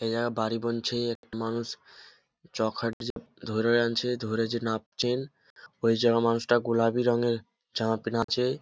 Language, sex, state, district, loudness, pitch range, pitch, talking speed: Bengali, male, West Bengal, Jhargram, -28 LUFS, 115-120 Hz, 115 Hz, 140 wpm